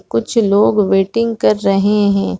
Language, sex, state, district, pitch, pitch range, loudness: Hindi, female, Chhattisgarh, Rajnandgaon, 200 Hz, 190-210 Hz, -14 LUFS